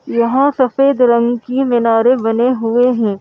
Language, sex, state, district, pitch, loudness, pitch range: Hindi, female, Madhya Pradesh, Bhopal, 245 Hz, -13 LUFS, 235-255 Hz